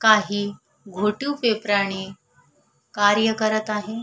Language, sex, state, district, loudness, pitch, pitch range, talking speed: Marathi, female, Maharashtra, Solapur, -22 LUFS, 210 Hz, 205-220 Hz, 105 wpm